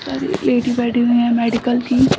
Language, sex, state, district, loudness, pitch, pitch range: Hindi, female, Bihar, Samastipur, -17 LUFS, 240 Hz, 235-245 Hz